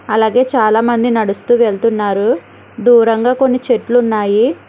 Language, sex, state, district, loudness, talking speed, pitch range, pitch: Telugu, female, Telangana, Hyderabad, -13 LUFS, 100 wpm, 215-240 Hz, 230 Hz